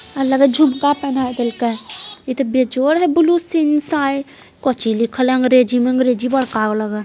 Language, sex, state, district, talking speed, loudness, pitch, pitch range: Hindi, female, Bihar, Jamui, 110 wpm, -16 LUFS, 260 Hz, 245-280 Hz